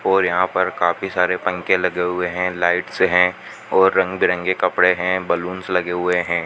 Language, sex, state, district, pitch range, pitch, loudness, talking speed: Hindi, male, Rajasthan, Bikaner, 90-95 Hz, 90 Hz, -19 LUFS, 195 wpm